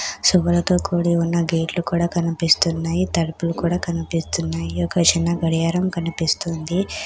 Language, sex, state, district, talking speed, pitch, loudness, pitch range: Telugu, female, Telangana, Hyderabad, 110 wpm, 170 Hz, -20 LUFS, 165-175 Hz